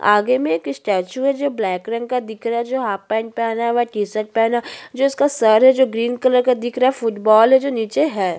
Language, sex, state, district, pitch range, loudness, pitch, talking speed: Hindi, female, Chhattisgarh, Bastar, 215-255 Hz, -18 LUFS, 230 Hz, 255 wpm